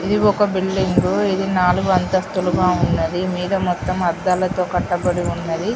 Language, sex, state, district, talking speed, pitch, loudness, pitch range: Telugu, female, Telangana, Karimnagar, 135 wpm, 185 Hz, -19 LUFS, 180-190 Hz